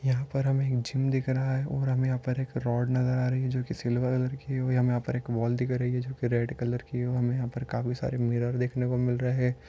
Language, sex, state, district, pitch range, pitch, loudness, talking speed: Hindi, male, Karnataka, Gulbarga, 125-130 Hz, 125 Hz, -29 LUFS, 310 wpm